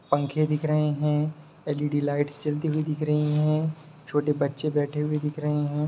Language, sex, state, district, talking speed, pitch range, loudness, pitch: Hindi, male, Bihar, Sitamarhi, 215 wpm, 150-155 Hz, -26 LUFS, 150 Hz